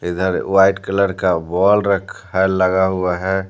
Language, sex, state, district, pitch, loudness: Hindi, male, Bihar, Patna, 95 Hz, -17 LUFS